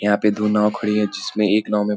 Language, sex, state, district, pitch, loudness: Hindi, male, Bihar, Lakhisarai, 105 Hz, -19 LUFS